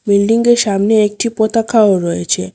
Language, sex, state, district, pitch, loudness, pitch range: Bengali, female, Assam, Hailakandi, 215 Hz, -13 LUFS, 200-225 Hz